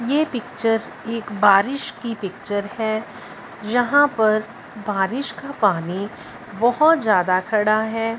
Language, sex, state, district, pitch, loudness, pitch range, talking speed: Hindi, female, Punjab, Fazilka, 225 Hz, -20 LUFS, 205-245 Hz, 115 wpm